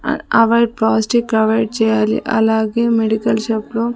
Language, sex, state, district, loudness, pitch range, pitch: Telugu, female, Andhra Pradesh, Sri Satya Sai, -15 LUFS, 220-230 Hz, 225 Hz